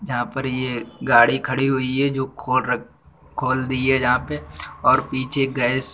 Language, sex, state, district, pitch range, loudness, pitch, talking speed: Bundeli, male, Uttar Pradesh, Budaun, 125-135 Hz, -21 LUFS, 130 Hz, 180 wpm